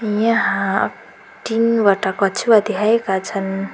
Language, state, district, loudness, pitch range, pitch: Nepali, West Bengal, Darjeeling, -17 LUFS, 195-225 Hz, 205 Hz